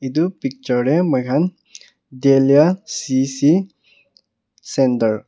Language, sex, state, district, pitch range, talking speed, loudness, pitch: Nagamese, male, Nagaland, Kohima, 130-165 Hz, 100 wpm, -17 LUFS, 135 Hz